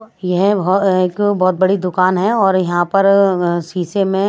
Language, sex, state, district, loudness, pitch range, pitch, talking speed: Hindi, female, Maharashtra, Washim, -15 LUFS, 180-200 Hz, 190 Hz, 155 wpm